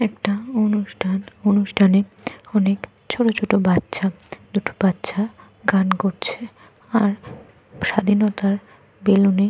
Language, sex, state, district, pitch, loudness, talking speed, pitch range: Bengali, female, Jharkhand, Jamtara, 200 Hz, -20 LUFS, 95 wpm, 195-215 Hz